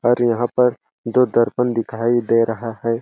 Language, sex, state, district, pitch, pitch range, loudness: Hindi, male, Chhattisgarh, Balrampur, 120 Hz, 115-120 Hz, -18 LUFS